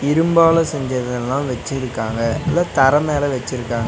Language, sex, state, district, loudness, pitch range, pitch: Tamil, male, Tamil Nadu, Nilgiris, -18 LUFS, 125-150 Hz, 135 Hz